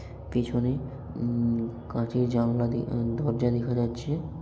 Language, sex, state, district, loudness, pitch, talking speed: Bengali, male, West Bengal, North 24 Parganas, -28 LUFS, 120 Hz, 95 wpm